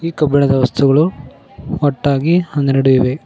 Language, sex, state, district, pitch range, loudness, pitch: Kannada, male, Karnataka, Koppal, 135-155 Hz, -14 LUFS, 140 Hz